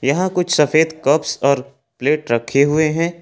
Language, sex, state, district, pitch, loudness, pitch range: Hindi, male, Jharkhand, Ranchi, 150 Hz, -17 LUFS, 140-160 Hz